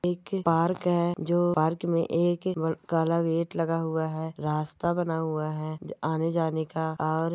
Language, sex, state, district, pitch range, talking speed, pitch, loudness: Hindi, female, Rajasthan, Nagaur, 160-170 Hz, 165 wpm, 165 Hz, -28 LUFS